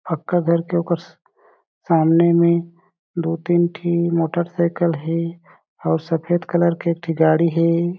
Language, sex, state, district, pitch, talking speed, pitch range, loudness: Chhattisgarhi, male, Chhattisgarh, Jashpur, 170 Hz, 150 wpm, 165-175 Hz, -19 LUFS